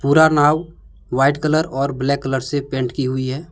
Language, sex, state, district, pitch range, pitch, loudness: Hindi, male, Jharkhand, Deoghar, 130-150 Hz, 140 Hz, -18 LUFS